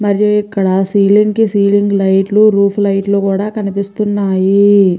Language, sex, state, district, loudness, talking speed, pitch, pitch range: Telugu, female, Andhra Pradesh, Chittoor, -12 LUFS, 170 wpm, 200 Hz, 195-210 Hz